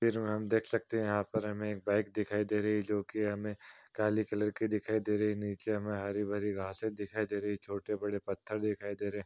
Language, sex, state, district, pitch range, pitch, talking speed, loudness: Hindi, male, Uttar Pradesh, Muzaffarnagar, 100-105 Hz, 105 Hz, 245 wpm, -35 LUFS